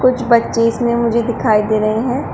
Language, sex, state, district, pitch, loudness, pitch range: Hindi, female, Uttar Pradesh, Shamli, 235 Hz, -15 LUFS, 220-240 Hz